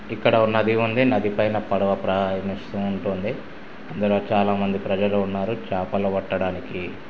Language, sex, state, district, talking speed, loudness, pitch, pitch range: Telugu, male, Andhra Pradesh, Srikakulam, 125 wpm, -23 LUFS, 100 Hz, 95-105 Hz